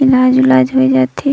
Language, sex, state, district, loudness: Surgujia, female, Chhattisgarh, Sarguja, -11 LUFS